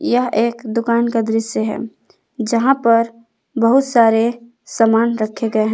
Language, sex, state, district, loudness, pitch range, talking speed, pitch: Hindi, female, Jharkhand, Palamu, -16 LUFS, 225-235 Hz, 145 wpm, 230 Hz